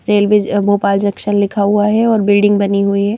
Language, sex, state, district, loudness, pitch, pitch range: Hindi, female, Madhya Pradesh, Bhopal, -13 LUFS, 205 Hz, 200-205 Hz